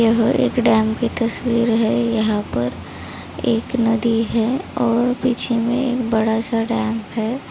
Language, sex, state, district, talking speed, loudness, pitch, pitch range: Hindi, female, Maharashtra, Chandrapur, 135 wpm, -19 LUFS, 230 Hz, 220-235 Hz